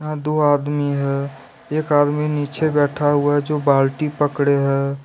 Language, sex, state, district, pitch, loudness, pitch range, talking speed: Hindi, male, Jharkhand, Deoghar, 145 Hz, -19 LUFS, 140-150 Hz, 165 wpm